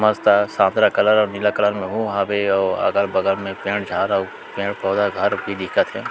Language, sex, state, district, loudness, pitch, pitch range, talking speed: Chhattisgarhi, male, Chhattisgarh, Sukma, -19 LUFS, 100 Hz, 95-105 Hz, 195 wpm